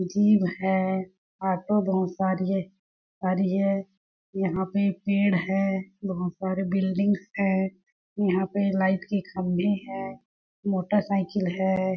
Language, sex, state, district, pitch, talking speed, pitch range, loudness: Hindi, female, Chhattisgarh, Balrampur, 190 Hz, 130 wpm, 190-195 Hz, -26 LUFS